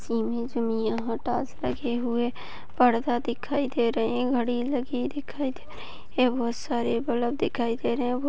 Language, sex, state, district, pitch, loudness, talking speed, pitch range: Hindi, female, Chhattisgarh, Sarguja, 240 Hz, -27 LUFS, 190 wpm, 235-250 Hz